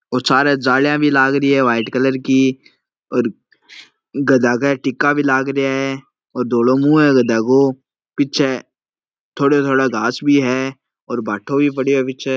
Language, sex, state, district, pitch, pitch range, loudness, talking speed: Marwari, male, Rajasthan, Nagaur, 135 Hz, 130-140 Hz, -16 LUFS, 175 wpm